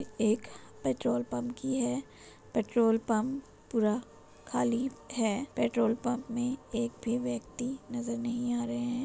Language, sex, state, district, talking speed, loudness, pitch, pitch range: Hindi, female, Uttar Pradesh, Etah, 140 wpm, -32 LUFS, 235 Hz, 220-245 Hz